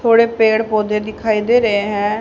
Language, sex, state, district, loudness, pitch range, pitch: Hindi, female, Haryana, Charkhi Dadri, -15 LUFS, 210-230 Hz, 220 Hz